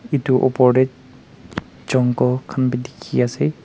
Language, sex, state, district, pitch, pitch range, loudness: Nagamese, male, Nagaland, Kohima, 130 Hz, 125-130 Hz, -19 LUFS